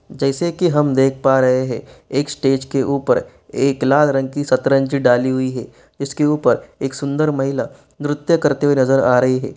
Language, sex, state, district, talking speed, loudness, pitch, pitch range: Hindi, male, Bihar, East Champaran, 195 wpm, -17 LUFS, 135 Hz, 135-145 Hz